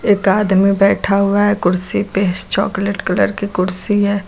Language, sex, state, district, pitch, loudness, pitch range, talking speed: Hindi, female, Uttar Pradesh, Lucknow, 200 Hz, -15 LUFS, 190-205 Hz, 170 wpm